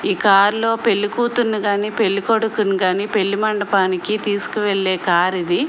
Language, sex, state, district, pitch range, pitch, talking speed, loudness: Telugu, female, Andhra Pradesh, Srikakulam, 195-215 Hz, 205 Hz, 115 wpm, -18 LUFS